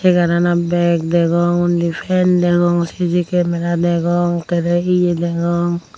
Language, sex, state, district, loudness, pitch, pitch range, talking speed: Chakma, female, Tripura, Unakoti, -16 LUFS, 175 Hz, 170-175 Hz, 130 wpm